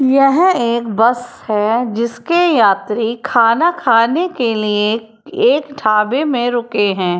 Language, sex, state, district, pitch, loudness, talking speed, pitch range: Hindi, female, Uttar Pradesh, Etah, 235 Hz, -15 LUFS, 125 wpm, 220-280 Hz